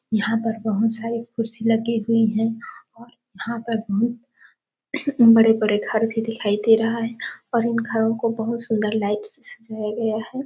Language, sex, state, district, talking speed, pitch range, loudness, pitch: Hindi, female, Chhattisgarh, Sarguja, 170 wpm, 220-235 Hz, -21 LUFS, 225 Hz